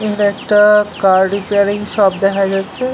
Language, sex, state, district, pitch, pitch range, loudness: Bengali, male, West Bengal, North 24 Parganas, 205 Hz, 195-210 Hz, -13 LUFS